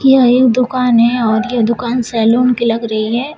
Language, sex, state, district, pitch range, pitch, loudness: Hindi, female, Uttar Pradesh, Shamli, 230-250 Hz, 240 Hz, -13 LUFS